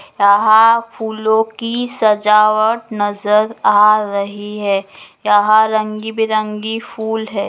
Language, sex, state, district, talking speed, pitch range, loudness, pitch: Magahi, female, Bihar, Gaya, 110 wpm, 210-220 Hz, -14 LUFS, 215 Hz